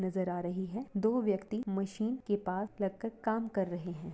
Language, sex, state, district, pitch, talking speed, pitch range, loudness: Hindi, female, Bihar, Darbhanga, 195 Hz, 220 wpm, 185-220 Hz, -35 LUFS